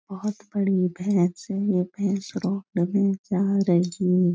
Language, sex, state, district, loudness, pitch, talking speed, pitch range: Hindi, female, Bihar, Jahanabad, -24 LUFS, 195 Hz, 150 wpm, 180-200 Hz